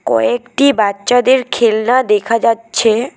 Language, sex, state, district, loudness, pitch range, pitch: Bengali, female, West Bengal, Alipurduar, -13 LUFS, 215-250 Hz, 230 Hz